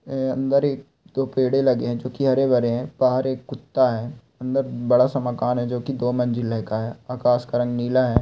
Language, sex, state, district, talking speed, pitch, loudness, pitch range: Hindi, male, Bihar, Bhagalpur, 240 wpm, 125 Hz, -22 LUFS, 120-135 Hz